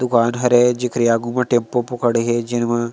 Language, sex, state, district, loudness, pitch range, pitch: Chhattisgarhi, male, Chhattisgarh, Sarguja, -18 LUFS, 120-125 Hz, 120 Hz